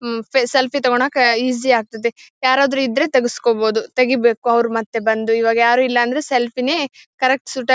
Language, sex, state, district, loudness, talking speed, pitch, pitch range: Kannada, female, Karnataka, Bellary, -17 LUFS, 165 wpm, 250 Hz, 235-260 Hz